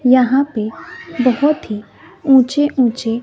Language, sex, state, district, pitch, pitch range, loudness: Hindi, female, Bihar, West Champaran, 255 Hz, 240-290 Hz, -15 LUFS